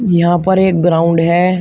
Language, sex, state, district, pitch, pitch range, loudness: Hindi, male, Uttar Pradesh, Shamli, 175 Hz, 170-185 Hz, -12 LUFS